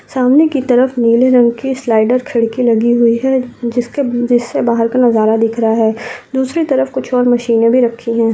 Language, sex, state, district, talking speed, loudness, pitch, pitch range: Hindi, female, Maharashtra, Sindhudurg, 180 wpm, -13 LUFS, 245 Hz, 230-255 Hz